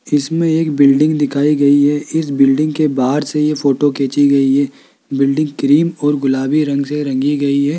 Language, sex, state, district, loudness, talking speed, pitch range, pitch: Hindi, male, Rajasthan, Jaipur, -14 LUFS, 195 wpm, 140-150 Hz, 145 Hz